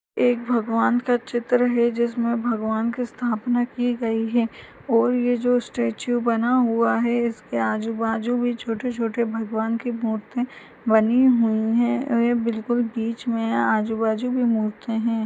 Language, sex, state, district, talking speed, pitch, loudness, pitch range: Hindi, female, Maharashtra, Solapur, 160 wpm, 235 Hz, -22 LUFS, 225-245 Hz